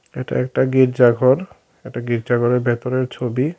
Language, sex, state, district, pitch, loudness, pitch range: Bengali, male, Tripura, Dhalai, 125 Hz, -18 LUFS, 120-130 Hz